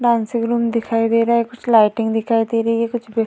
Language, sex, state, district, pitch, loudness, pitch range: Hindi, female, Uttar Pradesh, Varanasi, 230 Hz, -18 LUFS, 225-235 Hz